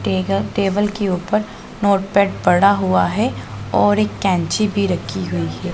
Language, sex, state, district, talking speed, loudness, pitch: Hindi, female, Punjab, Pathankot, 155 wpm, -18 LUFS, 175 Hz